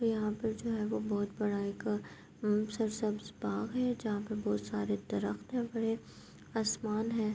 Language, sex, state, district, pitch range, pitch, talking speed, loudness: Urdu, female, Andhra Pradesh, Anantapur, 205-225 Hz, 215 Hz, 155 wpm, -35 LUFS